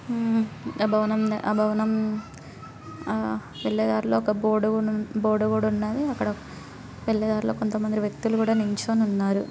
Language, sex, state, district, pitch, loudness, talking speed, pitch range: Telugu, female, Telangana, Karimnagar, 215 Hz, -25 LUFS, 140 wpm, 200-220 Hz